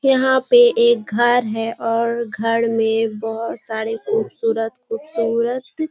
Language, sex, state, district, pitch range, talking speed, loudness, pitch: Hindi, female, Bihar, Kishanganj, 225-245 Hz, 120 wpm, -18 LUFS, 230 Hz